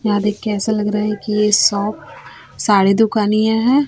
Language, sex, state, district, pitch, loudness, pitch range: Hindi, female, Chhattisgarh, Raipur, 210 Hz, -16 LUFS, 210-220 Hz